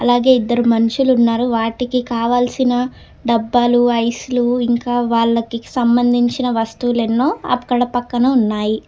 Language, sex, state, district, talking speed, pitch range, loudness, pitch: Telugu, female, Telangana, Hyderabad, 100 wpm, 230-245 Hz, -16 LUFS, 240 Hz